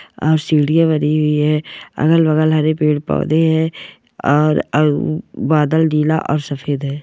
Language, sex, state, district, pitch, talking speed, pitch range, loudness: Hindi, male, Maharashtra, Solapur, 155 Hz, 145 wpm, 150-155 Hz, -16 LUFS